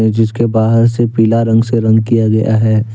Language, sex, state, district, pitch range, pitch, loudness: Hindi, male, Jharkhand, Deoghar, 110-115 Hz, 115 Hz, -12 LUFS